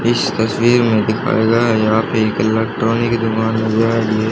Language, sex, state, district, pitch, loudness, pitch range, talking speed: Hindi, male, Haryana, Charkhi Dadri, 110 Hz, -15 LUFS, 110-115 Hz, 210 wpm